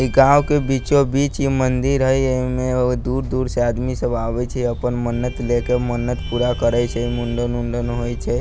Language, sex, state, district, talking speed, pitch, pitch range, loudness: Maithili, male, Bihar, Sitamarhi, 185 wpm, 125 Hz, 120-130 Hz, -19 LUFS